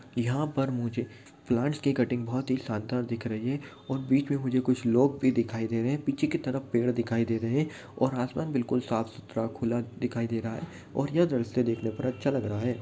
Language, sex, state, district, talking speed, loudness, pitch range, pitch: Hindi, male, Bihar, Lakhisarai, 240 wpm, -29 LUFS, 115-135 Hz, 125 Hz